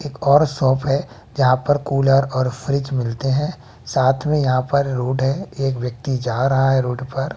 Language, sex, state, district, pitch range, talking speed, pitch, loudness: Hindi, male, Bihar, West Champaran, 130-140 Hz, 195 wpm, 135 Hz, -19 LUFS